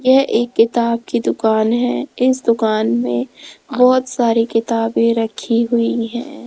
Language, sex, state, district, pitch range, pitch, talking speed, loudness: Hindi, female, Rajasthan, Jaipur, 225-250 Hz, 230 Hz, 140 wpm, -16 LUFS